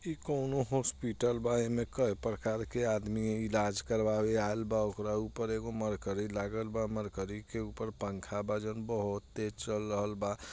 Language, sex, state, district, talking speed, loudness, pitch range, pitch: Bhojpuri, male, Bihar, East Champaran, 170 wpm, -35 LUFS, 105-115 Hz, 110 Hz